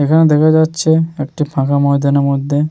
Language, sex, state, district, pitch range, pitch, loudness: Bengali, male, West Bengal, Jalpaiguri, 140-160 Hz, 150 Hz, -13 LUFS